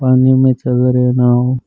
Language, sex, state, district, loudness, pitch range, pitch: Rajasthani, male, Rajasthan, Churu, -12 LUFS, 125-130 Hz, 125 Hz